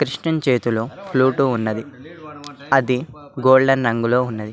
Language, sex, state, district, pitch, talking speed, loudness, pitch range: Telugu, male, Telangana, Mahabubabad, 130 Hz, 105 wpm, -19 LUFS, 120-145 Hz